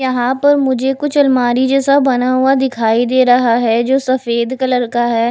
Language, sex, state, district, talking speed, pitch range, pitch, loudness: Hindi, female, Bihar, West Champaran, 190 wpm, 240-265 Hz, 255 Hz, -13 LUFS